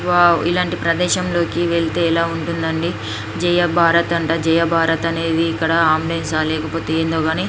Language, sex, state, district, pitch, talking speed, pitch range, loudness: Telugu, female, Andhra Pradesh, Srikakulam, 165 Hz, 150 wpm, 160-170 Hz, -17 LUFS